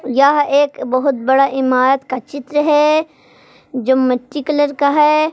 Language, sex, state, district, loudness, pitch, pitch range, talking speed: Hindi, female, Jharkhand, Palamu, -15 LUFS, 280 Hz, 260-295 Hz, 145 wpm